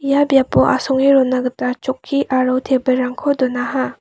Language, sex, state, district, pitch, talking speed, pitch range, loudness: Garo, female, Meghalaya, West Garo Hills, 260 Hz, 150 wpm, 255-275 Hz, -16 LUFS